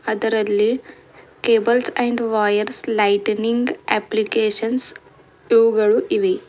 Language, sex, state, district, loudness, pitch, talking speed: Kannada, female, Karnataka, Bidar, -19 LUFS, 230 Hz, 75 wpm